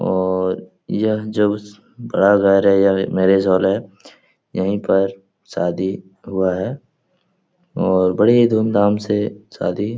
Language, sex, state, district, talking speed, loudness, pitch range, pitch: Hindi, male, Bihar, Jahanabad, 115 wpm, -18 LUFS, 95-110 Hz, 100 Hz